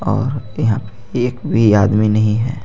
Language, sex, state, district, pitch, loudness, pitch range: Hindi, male, Jharkhand, Garhwa, 110 Hz, -16 LUFS, 105-125 Hz